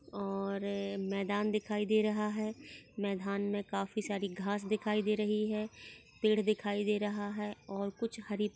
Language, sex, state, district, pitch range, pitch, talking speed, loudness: Hindi, female, Maharashtra, Chandrapur, 200-215 Hz, 210 Hz, 160 wpm, -35 LUFS